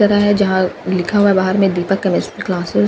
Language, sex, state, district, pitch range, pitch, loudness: Hindi, female, Bihar, Katihar, 185-200 Hz, 190 Hz, -15 LUFS